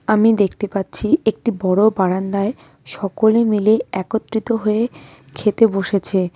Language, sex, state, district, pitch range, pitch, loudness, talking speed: Bengali, female, West Bengal, Cooch Behar, 195-220 Hz, 210 Hz, -18 LUFS, 115 wpm